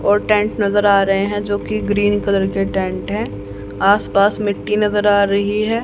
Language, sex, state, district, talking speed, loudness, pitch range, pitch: Hindi, female, Haryana, Rohtak, 205 wpm, -17 LUFS, 195-210 Hz, 205 Hz